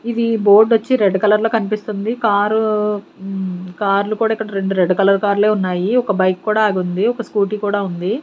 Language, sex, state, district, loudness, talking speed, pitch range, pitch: Telugu, female, Andhra Pradesh, Sri Satya Sai, -16 LUFS, 175 wpm, 195-220 Hz, 210 Hz